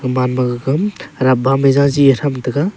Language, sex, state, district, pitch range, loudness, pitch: Wancho, male, Arunachal Pradesh, Longding, 130-140 Hz, -15 LUFS, 135 Hz